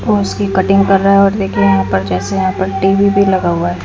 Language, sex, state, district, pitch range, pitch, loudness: Hindi, female, Haryana, Rohtak, 175-195 Hz, 195 Hz, -13 LUFS